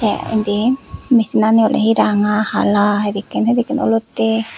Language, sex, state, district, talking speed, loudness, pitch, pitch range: Chakma, female, Tripura, West Tripura, 130 wpm, -16 LUFS, 220 Hz, 210-230 Hz